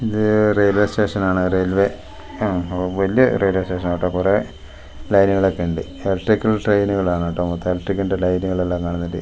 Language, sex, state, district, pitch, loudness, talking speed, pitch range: Malayalam, male, Kerala, Wayanad, 95 Hz, -19 LUFS, 110 wpm, 90-100 Hz